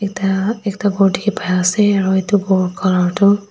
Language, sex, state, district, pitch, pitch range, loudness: Nagamese, female, Nagaland, Dimapur, 195 Hz, 190-205 Hz, -16 LUFS